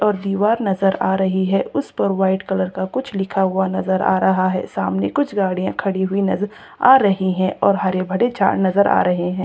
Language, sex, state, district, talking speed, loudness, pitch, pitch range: Hindi, female, Bihar, Katihar, 220 wpm, -18 LUFS, 190 Hz, 185-200 Hz